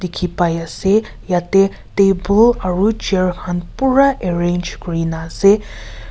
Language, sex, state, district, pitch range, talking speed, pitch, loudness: Nagamese, female, Nagaland, Kohima, 175-200 Hz, 120 wpm, 180 Hz, -16 LUFS